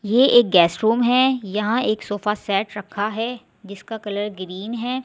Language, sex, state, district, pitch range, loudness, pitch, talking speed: Hindi, female, Delhi, New Delhi, 205-240 Hz, -20 LUFS, 215 Hz, 180 wpm